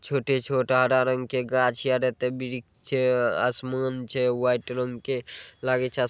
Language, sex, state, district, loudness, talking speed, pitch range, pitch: Maithili, male, Bihar, Saharsa, -25 LUFS, 175 wpm, 125-130 Hz, 130 Hz